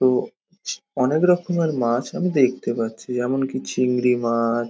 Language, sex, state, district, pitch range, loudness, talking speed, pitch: Bengali, male, West Bengal, Jalpaiguri, 120-135 Hz, -22 LUFS, 140 wpm, 125 Hz